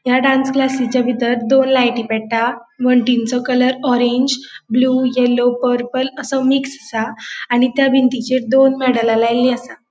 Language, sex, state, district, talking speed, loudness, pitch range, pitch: Konkani, female, Goa, North and South Goa, 140 wpm, -16 LUFS, 245-265 Hz, 250 Hz